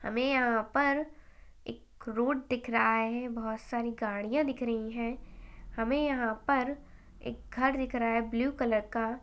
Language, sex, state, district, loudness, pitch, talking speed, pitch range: Hindi, female, Chhattisgarh, Bastar, -31 LUFS, 240 Hz, 160 wpm, 225-265 Hz